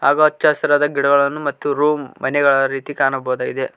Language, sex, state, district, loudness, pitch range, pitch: Kannada, male, Karnataka, Koppal, -17 LUFS, 135-145 Hz, 140 Hz